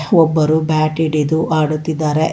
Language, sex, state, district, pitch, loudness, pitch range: Kannada, female, Karnataka, Bangalore, 155 Hz, -16 LUFS, 155-160 Hz